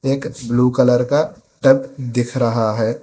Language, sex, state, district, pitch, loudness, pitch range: Hindi, female, Telangana, Hyderabad, 125 Hz, -17 LUFS, 120-135 Hz